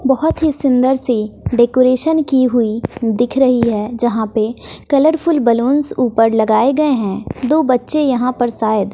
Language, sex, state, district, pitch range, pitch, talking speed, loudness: Hindi, female, Bihar, West Champaran, 230-275 Hz, 250 Hz, 150 wpm, -15 LUFS